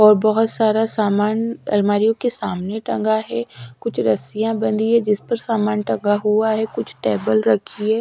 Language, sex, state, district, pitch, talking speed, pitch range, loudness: Hindi, female, Odisha, Sambalpur, 215 Hz, 170 wpm, 205-225 Hz, -19 LUFS